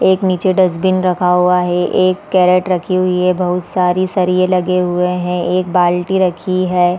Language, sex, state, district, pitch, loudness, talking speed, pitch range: Hindi, female, Chhattisgarh, Balrampur, 180 Hz, -14 LUFS, 180 wpm, 180-185 Hz